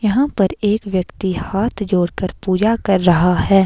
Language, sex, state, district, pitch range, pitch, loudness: Hindi, female, Himachal Pradesh, Shimla, 185-210 Hz, 195 Hz, -17 LUFS